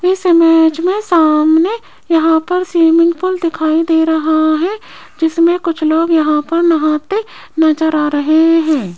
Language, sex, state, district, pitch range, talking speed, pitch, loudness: Hindi, female, Rajasthan, Jaipur, 315-340 Hz, 145 wpm, 325 Hz, -12 LUFS